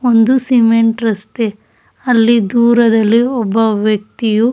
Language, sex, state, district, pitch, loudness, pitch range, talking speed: Kannada, female, Karnataka, Shimoga, 230 Hz, -12 LUFS, 220-235 Hz, 95 wpm